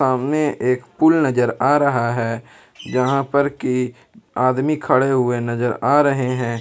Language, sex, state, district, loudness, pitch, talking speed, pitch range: Hindi, male, Jharkhand, Ranchi, -18 LUFS, 130 Hz, 155 wpm, 120-140 Hz